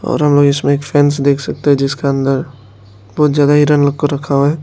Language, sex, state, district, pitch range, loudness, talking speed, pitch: Hindi, male, Arunachal Pradesh, Lower Dibang Valley, 135-145 Hz, -13 LUFS, 245 wpm, 140 Hz